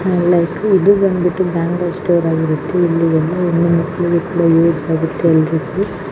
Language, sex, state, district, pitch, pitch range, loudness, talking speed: Kannada, female, Karnataka, Bijapur, 170 Hz, 165-180 Hz, -15 LUFS, 125 wpm